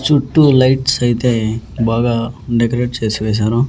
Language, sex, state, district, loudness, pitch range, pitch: Telugu, male, Andhra Pradesh, Annamaya, -15 LUFS, 115-130 Hz, 120 Hz